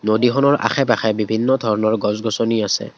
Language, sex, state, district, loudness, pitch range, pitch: Assamese, male, Assam, Kamrup Metropolitan, -18 LUFS, 110-120 Hz, 110 Hz